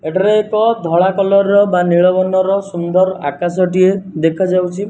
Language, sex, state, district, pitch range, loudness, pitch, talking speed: Odia, male, Odisha, Nuapada, 175-195 Hz, -14 LUFS, 185 Hz, 120 wpm